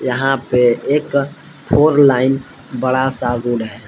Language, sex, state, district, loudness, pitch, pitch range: Hindi, male, Jharkhand, Palamu, -15 LUFS, 130 Hz, 120-140 Hz